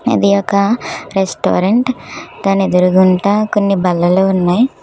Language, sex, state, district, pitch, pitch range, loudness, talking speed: Telugu, female, Telangana, Hyderabad, 195 Hz, 185-210 Hz, -13 LUFS, 100 wpm